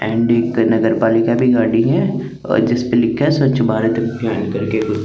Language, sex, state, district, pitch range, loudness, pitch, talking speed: Hindi, male, Chandigarh, Chandigarh, 110-120 Hz, -16 LUFS, 115 Hz, 200 wpm